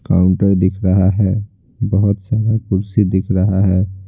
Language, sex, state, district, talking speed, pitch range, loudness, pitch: Hindi, male, Bihar, Patna, 145 wpm, 95-105 Hz, -16 LUFS, 95 Hz